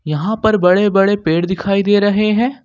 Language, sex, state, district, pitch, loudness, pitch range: Hindi, male, Jharkhand, Ranchi, 205 Hz, -14 LUFS, 180-210 Hz